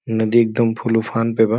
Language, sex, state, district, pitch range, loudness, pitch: Bhojpuri, male, Uttar Pradesh, Gorakhpur, 110-115 Hz, -18 LUFS, 115 Hz